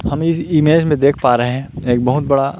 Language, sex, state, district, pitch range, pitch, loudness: Hindi, male, Chhattisgarh, Rajnandgaon, 130-155 Hz, 140 Hz, -15 LUFS